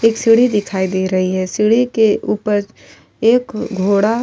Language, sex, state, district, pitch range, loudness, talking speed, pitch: Hindi, female, Uttar Pradesh, Etah, 195-225 Hz, -15 LUFS, 170 wpm, 210 Hz